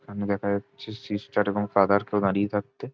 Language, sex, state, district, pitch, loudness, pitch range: Bengali, male, West Bengal, Jhargram, 100 Hz, -26 LUFS, 100-105 Hz